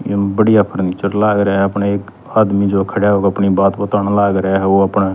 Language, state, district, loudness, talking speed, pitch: Haryanvi, Haryana, Rohtak, -14 LUFS, 220 wpm, 100 Hz